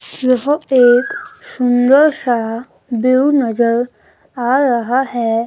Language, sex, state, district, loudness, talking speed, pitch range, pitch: Hindi, female, Himachal Pradesh, Shimla, -14 LUFS, 100 wpm, 235-265 Hz, 245 Hz